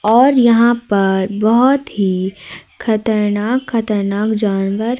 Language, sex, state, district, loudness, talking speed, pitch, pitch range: Hindi, female, Madhya Pradesh, Umaria, -15 LUFS, 95 wpm, 215 Hz, 200-235 Hz